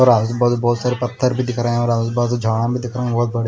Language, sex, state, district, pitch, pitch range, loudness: Hindi, male, Odisha, Malkangiri, 120 Hz, 120-125 Hz, -18 LUFS